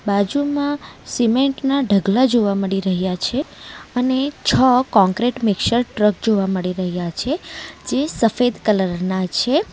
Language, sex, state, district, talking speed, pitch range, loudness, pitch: Gujarati, female, Gujarat, Valsad, 125 wpm, 195-270 Hz, -19 LUFS, 230 Hz